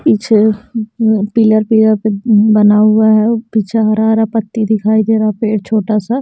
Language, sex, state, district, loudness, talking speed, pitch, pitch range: Hindi, female, Bihar, Kaimur, -12 LUFS, 175 wpm, 220 Hz, 215-220 Hz